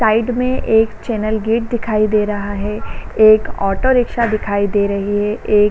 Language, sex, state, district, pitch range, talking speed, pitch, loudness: Hindi, female, Bihar, Saran, 205-230 Hz, 190 wpm, 215 Hz, -16 LUFS